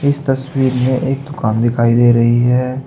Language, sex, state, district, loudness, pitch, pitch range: Hindi, male, Uttar Pradesh, Saharanpur, -14 LUFS, 130 Hz, 120-135 Hz